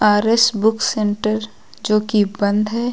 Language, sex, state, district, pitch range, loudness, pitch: Hindi, female, Uttar Pradesh, Lucknow, 210-220 Hz, -17 LUFS, 215 Hz